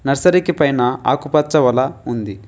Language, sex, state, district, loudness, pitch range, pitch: Telugu, male, Telangana, Mahabubabad, -16 LUFS, 125-150 Hz, 135 Hz